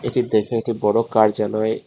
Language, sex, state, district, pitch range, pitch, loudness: Bengali, male, Tripura, West Tripura, 105-115 Hz, 110 Hz, -19 LUFS